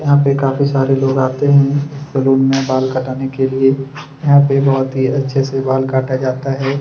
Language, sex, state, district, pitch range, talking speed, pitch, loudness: Hindi, male, Chhattisgarh, Kabirdham, 130-140 Hz, 200 wpm, 135 Hz, -15 LUFS